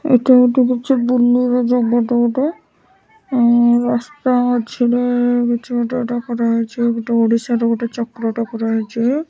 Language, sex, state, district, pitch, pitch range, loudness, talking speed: Odia, female, Odisha, Sambalpur, 240 Hz, 235-250 Hz, -16 LUFS, 115 wpm